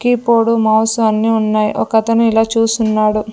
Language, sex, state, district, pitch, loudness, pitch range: Telugu, female, Andhra Pradesh, Sri Satya Sai, 225 Hz, -13 LUFS, 215-230 Hz